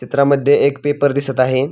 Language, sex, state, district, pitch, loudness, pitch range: Marathi, male, Maharashtra, Pune, 140 Hz, -15 LUFS, 135-145 Hz